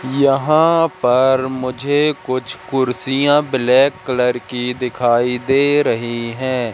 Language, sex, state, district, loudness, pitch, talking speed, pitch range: Hindi, male, Madhya Pradesh, Katni, -16 LUFS, 130 Hz, 105 wpm, 125-140 Hz